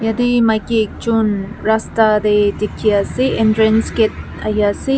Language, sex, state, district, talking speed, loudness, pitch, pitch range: Nagamese, female, Nagaland, Kohima, 130 wpm, -16 LUFS, 220 Hz, 210-225 Hz